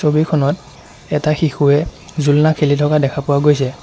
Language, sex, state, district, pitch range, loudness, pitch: Assamese, male, Assam, Sonitpur, 140-150 Hz, -15 LUFS, 145 Hz